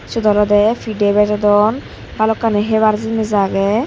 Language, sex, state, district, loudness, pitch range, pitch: Chakma, female, Tripura, Dhalai, -15 LUFS, 205-220 Hz, 210 Hz